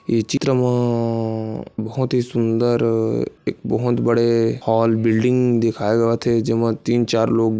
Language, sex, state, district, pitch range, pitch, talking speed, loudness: Hindi, male, Chhattisgarh, Kabirdham, 115-120 Hz, 115 Hz, 140 wpm, -19 LUFS